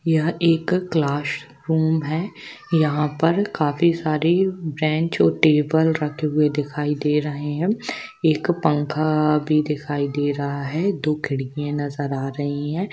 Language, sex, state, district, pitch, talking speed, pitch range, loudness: Hindi, female, Jharkhand, Sahebganj, 155 Hz, 140 wpm, 150-165 Hz, -21 LUFS